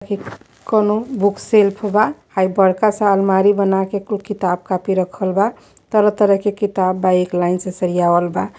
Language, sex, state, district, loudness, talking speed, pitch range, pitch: Hindi, male, Uttar Pradesh, Varanasi, -17 LUFS, 165 wpm, 185-205 Hz, 195 Hz